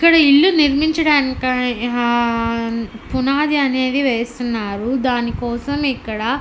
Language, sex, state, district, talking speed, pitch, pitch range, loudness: Telugu, female, Andhra Pradesh, Anantapur, 105 wpm, 255 Hz, 235-285 Hz, -17 LUFS